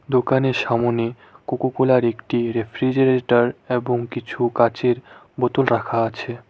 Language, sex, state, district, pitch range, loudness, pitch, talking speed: Bengali, male, West Bengal, Cooch Behar, 120-130 Hz, -20 LUFS, 120 Hz, 110 wpm